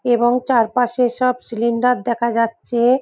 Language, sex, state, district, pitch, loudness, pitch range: Bengali, female, West Bengal, Jhargram, 240 Hz, -18 LUFS, 235-250 Hz